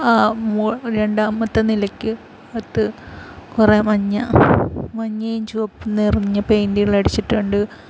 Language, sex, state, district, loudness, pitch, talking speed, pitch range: Malayalam, female, Kerala, Kollam, -18 LUFS, 215 Hz, 90 wpm, 210-225 Hz